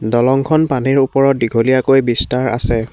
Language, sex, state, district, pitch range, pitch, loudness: Assamese, male, Assam, Hailakandi, 120-135 Hz, 130 Hz, -14 LUFS